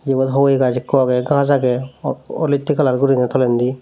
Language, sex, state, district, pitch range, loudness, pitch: Chakma, male, Tripura, Dhalai, 125-140 Hz, -17 LUFS, 130 Hz